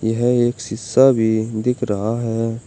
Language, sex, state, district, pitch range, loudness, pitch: Hindi, male, Uttar Pradesh, Saharanpur, 110-120 Hz, -18 LUFS, 115 Hz